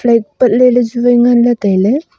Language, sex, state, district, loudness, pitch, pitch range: Wancho, female, Arunachal Pradesh, Longding, -11 LUFS, 240 Hz, 235-250 Hz